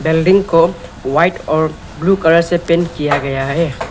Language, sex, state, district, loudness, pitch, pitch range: Hindi, male, Arunachal Pradesh, Lower Dibang Valley, -14 LUFS, 165 Hz, 155-170 Hz